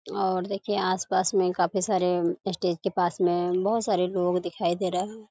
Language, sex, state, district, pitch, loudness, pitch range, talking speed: Hindi, female, Bihar, East Champaran, 185 Hz, -26 LUFS, 180-195 Hz, 190 wpm